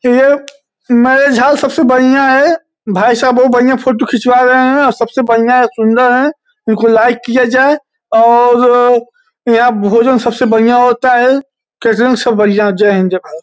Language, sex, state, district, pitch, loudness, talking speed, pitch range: Hindi, male, Uttar Pradesh, Gorakhpur, 250 Hz, -10 LUFS, 190 wpm, 235-265 Hz